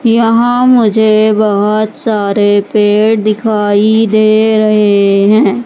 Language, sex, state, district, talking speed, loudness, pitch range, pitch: Hindi, male, Madhya Pradesh, Katni, 95 wpm, -9 LUFS, 205-220 Hz, 215 Hz